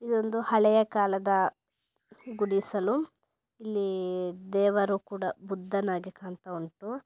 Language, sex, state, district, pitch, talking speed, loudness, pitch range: Kannada, female, Karnataka, Dakshina Kannada, 200 Hz, 85 wpm, -29 LUFS, 190-220 Hz